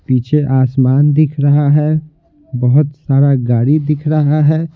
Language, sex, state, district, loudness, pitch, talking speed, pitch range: Hindi, male, Bihar, Patna, -13 LUFS, 145 Hz, 140 wpm, 135-150 Hz